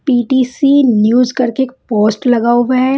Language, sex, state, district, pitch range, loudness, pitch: Hindi, female, Punjab, Kapurthala, 240-260 Hz, -12 LUFS, 250 Hz